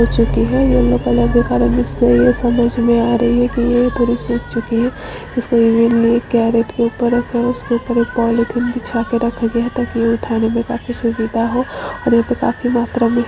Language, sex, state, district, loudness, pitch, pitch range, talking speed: Hindi, female, Chhattisgarh, Bilaspur, -16 LUFS, 235 Hz, 230-240 Hz, 225 wpm